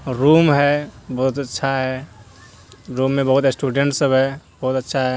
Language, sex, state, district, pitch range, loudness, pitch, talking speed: Hindi, male, Bihar, Purnia, 130-140 Hz, -18 LUFS, 135 Hz, 160 wpm